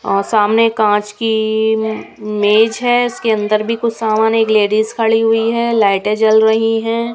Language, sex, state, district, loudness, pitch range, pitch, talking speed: Hindi, female, Punjab, Kapurthala, -14 LUFS, 215-225 Hz, 220 Hz, 175 wpm